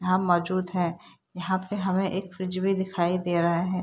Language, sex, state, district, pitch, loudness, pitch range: Hindi, female, Bihar, Saharsa, 185 Hz, -26 LUFS, 175-190 Hz